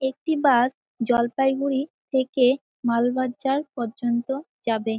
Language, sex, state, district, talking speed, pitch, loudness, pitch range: Bengali, female, West Bengal, Jalpaiguri, 85 wpm, 255 Hz, -24 LUFS, 240-270 Hz